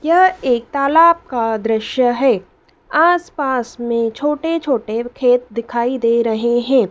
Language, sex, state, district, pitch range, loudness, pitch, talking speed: Hindi, female, Madhya Pradesh, Dhar, 235-295 Hz, -16 LUFS, 245 Hz, 130 wpm